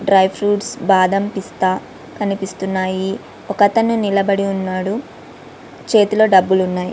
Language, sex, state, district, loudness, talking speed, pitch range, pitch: Telugu, female, Andhra Pradesh, Visakhapatnam, -17 LUFS, 105 wpm, 190-205 Hz, 195 Hz